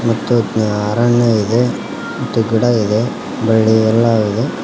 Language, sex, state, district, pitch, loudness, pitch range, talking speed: Kannada, male, Karnataka, Koppal, 115 Hz, -15 LUFS, 110-120 Hz, 115 wpm